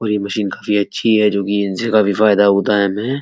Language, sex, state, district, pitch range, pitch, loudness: Hindi, male, Uttar Pradesh, Etah, 100-110 Hz, 105 Hz, -15 LUFS